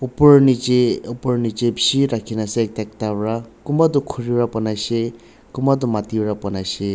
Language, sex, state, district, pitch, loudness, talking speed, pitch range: Nagamese, male, Nagaland, Dimapur, 115 Hz, -19 LUFS, 175 wpm, 110-125 Hz